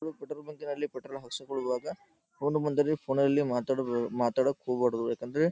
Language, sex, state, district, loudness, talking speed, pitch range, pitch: Kannada, male, Karnataka, Dharwad, -31 LUFS, 130 wpm, 125-150 Hz, 135 Hz